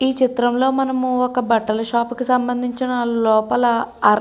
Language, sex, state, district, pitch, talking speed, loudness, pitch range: Telugu, female, Andhra Pradesh, Srikakulam, 245 Hz, 140 wpm, -18 LUFS, 235-255 Hz